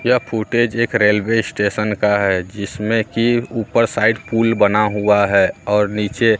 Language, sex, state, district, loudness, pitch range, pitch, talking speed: Hindi, male, Bihar, Katihar, -17 LUFS, 105-115 Hz, 110 Hz, 160 wpm